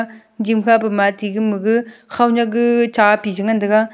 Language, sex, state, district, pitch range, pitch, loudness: Wancho, female, Arunachal Pradesh, Longding, 210-230 Hz, 220 Hz, -16 LUFS